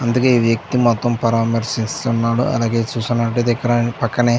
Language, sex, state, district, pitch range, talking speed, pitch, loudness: Telugu, male, Andhra Pradesh, Chittoor, 115-120 Hz, 135 wpm, 120 Hz, -18 LUFS